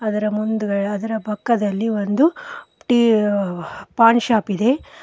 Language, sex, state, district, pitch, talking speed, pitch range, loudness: Kannada, female, Karnataka, Koppal, 220 Hz, 130 wpm, 205-235 Hz, -19 LUFS